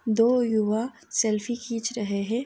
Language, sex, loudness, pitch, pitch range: Hindi, female, -25 LUFS, 230 Hz, 215-240 Hz